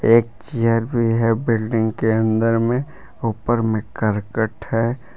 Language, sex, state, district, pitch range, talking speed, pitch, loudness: Hindi, male, Jharkhand, Palamu, 110-115 Hz, 140 wpm, 115 Hz, -20 LUFS